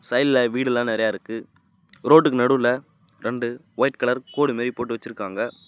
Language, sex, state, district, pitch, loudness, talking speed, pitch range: Tamil, male, Tamil Nadu, Namakkal, 120 Hz, -22 LUFS, 150 wpm, 115-130 Hz